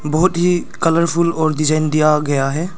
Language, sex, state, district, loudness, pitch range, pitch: Hindi, male, Arunachal Pradesh, Lower Dibang Valley, -16 LUFS, 155-170 Hz, 155 Hz